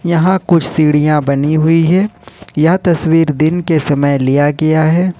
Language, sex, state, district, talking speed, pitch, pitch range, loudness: Hindi, male, Jharkhand, Ranchi, 160 wpm, 155 Hz, 150-170 Hz, -12 LUFS